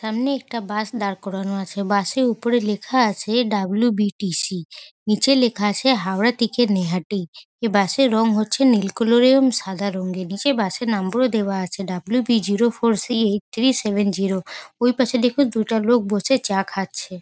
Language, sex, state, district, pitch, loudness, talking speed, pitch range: Bengali, female, West Bengal, North 24 Parganas, 215 Hz, -20 LUFS, 185 wpm, 195-245 Hz